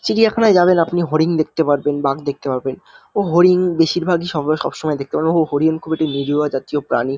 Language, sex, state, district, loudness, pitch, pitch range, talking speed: Bengali, male, West Bengal, North 24 Parganas, -17 LUFS, 160 Hz, 145-175 Hz, 190 wpm